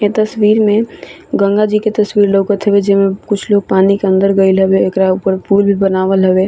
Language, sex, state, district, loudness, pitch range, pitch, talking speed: Bhojpuri, female, Bihar, Saran, -12 LUFS, 190-210 Hz, 200 Hz, 215 wpm